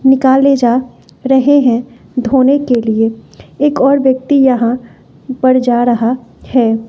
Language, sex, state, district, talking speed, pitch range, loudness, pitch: Hindi, female, Bihar, West Champaran, 130 wpm, 240-270 Hz, -12 LUFS, 255 Hz